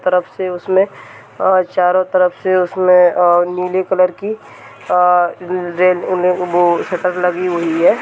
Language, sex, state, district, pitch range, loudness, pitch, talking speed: Hindi, male, Bihar, Purnia, 180-185 Hz, -15 LUFS, 180 Hz, 120 wpm